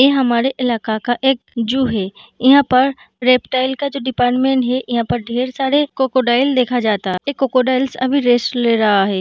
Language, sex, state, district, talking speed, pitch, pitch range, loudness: Hindi, female, Bihar, Darbhanga, 190 wpm, 255 Hz, 240-265 Hz, -16 LUFS